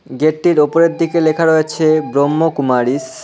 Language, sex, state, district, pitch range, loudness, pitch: Bengali, male, West Bengal, Cooch Behar, 145-165 Hz, -14 LUFS, 155 Hz